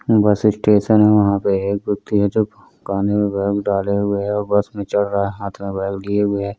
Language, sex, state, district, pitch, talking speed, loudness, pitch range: Hindi, male, Uttar Pradesh, Budaun, 100 Hz, 230 wpm, -18 LUFS, 100-105 Hz